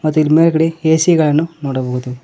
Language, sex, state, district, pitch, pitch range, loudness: Kannada, male, Karnataka, Koppal, 155 Hz, 140-160 Hz, -14 LUFS